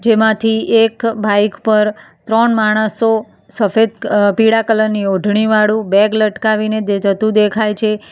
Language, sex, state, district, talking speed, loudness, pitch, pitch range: Gujarati, female, Gujarat, Valsad, 145 wpm, -14 LUFS, 215 Hz, 210-220 Hz